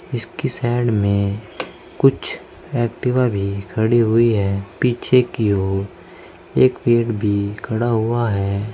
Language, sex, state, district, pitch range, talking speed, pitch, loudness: Hindi, male, Uttar Pradesh, Saharanpur, 100-120 Hz, 125 wpm, 110 Hz, -19 LUFS